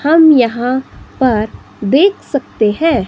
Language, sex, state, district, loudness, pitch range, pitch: Hindi, female, Himachal Pradesh, Shimla, -13 LUFS, 230-310 Hz, 260 Hz